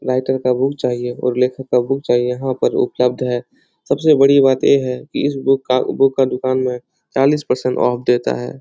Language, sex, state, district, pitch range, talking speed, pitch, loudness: Hindi, male, Bihar, Jahanabad, 125-135 Hz, 210 wpm, 130 Hz, -17 LUFS